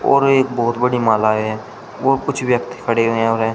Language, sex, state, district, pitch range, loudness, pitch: Hindi, male, Uttar Pradesh, Shamli, 115-130 Hz, -17 LUFS, 120 Hz